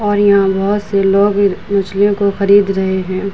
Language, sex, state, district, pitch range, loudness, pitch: Hindi, female, Uttar Pradesh, Budaun, 195-205 Hz, -13 LUFS, 200 Hz